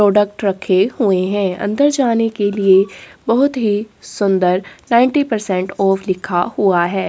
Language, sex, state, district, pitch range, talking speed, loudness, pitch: Hindi, female, Chhattisgarh, Korba, 190-225 Hz, 145 wpm, -16 LUFS, 200 Hz